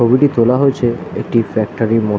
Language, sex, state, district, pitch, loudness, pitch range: Bengali, male, West Bengal, Dakshin Dinajpur, 115 Hz, -15 LUFS, 110-125 Hz